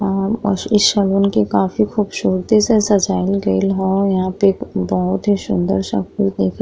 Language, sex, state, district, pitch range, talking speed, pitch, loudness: Bhojpuri, female, Uttar Pradesh, Gorakhpur, 185-205 Hz, 180 wpm, 195 Hz, -17 LUFS